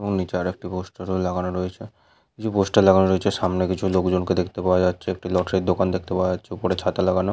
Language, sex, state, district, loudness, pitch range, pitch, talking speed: Bengali, male, West Bengal, Malda, -22 LUFS, 90-95 Hz, 90 Hz, 230 wpm